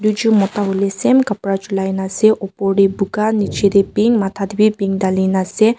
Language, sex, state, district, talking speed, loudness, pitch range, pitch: Nagamese, female, Nagaland, Kohima, 215 wpm, -16 LUFS, 195-215 Hz, 200 Hz